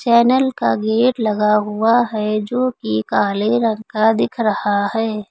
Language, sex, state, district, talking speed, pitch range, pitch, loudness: Hindi, female, Uttar Pradesh, Lucknow, 160 wpm, 210-235 Hz, 220 Hz, -17 LUFS